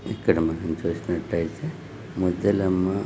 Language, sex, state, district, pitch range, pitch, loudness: Telugu, male, Telangana, Nalgonda, 85-100 Hz, 95 Hz, -25 LUFS